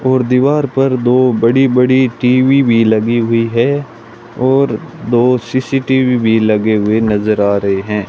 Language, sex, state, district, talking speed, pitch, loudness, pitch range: Hindi, male, Rajasthan, Bikaner, 155 wpm, 120 Hz, -12 LUFS, 110-130 Hz